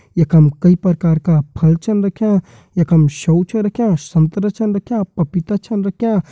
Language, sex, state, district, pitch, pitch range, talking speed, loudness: Hindi, male, Uttarakhand, Uttarkashi, 180 Hz, 165-205 Hz, 160 wpm, -15 LUFS